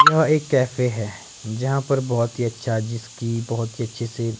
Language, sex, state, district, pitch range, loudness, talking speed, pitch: Hindi, male, Himachal Pradesh, Shimla, 115-135 Hz, -23 LUFS, 190 wpm, 115 Hz